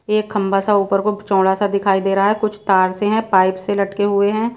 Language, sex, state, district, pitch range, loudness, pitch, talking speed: Hindi, female, Odisha, Sambalpur, 195-210 Hz, -17 LUFS, 200 Hz, 260 wpm